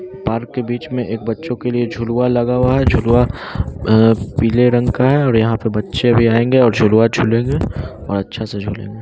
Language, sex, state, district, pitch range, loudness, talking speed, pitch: Hindi, male, Bihar, Muzaffarpur, 110-125 Hz, -16 LUFS, 215 wpm, 120 Hz